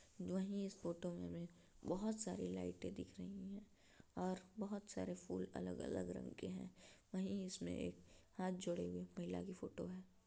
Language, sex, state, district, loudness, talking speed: Hindi, female, Bihar, Araria, -48 LUFS, 170 wpm